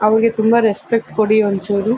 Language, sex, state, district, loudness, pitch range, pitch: Kannada, female, Karnataka, Bellary, -15 LUFS, 205-230 Hz, 220 Hz